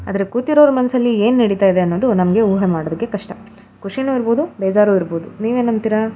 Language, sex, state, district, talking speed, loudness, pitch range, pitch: Kannada, female, Karnataka, Shimoga, 175 wpm, -16 LUFS, 195-240 Hz, 215 Hz